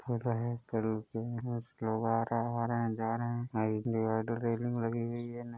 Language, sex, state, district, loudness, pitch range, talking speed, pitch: Hindi, male, Bihar, East Champaran, -34 LUFS, 115-120 Hz, 140 wpm, 115 Hz